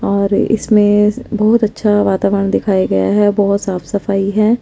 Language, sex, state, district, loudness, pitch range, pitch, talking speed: Hindi, female, Chandigarh, Chandigarh, -14 LUFS, 195-215 Hz, 205 Hz, 170 wpm